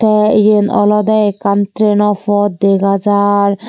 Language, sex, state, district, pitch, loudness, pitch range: Chakma, female, Tripura, Dhalai, 205 Hz, -12 LUFS, 200-210 Hz